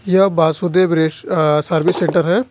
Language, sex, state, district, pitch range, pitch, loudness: Hindi, male, Jharkhand, Ranchi, 160-185 Hz, 175 Hz, -15 LUFS